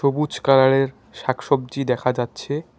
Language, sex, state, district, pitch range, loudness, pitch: Bengali, male, West Bengal, Alipurduar, 125-140 Hz, -21 LUFS, 135 Hz